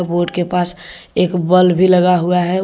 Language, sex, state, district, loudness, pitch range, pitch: Hindi, male, Jharkhand, Deoghar, -14 LUFS, 175-180 Hz, 180 Hz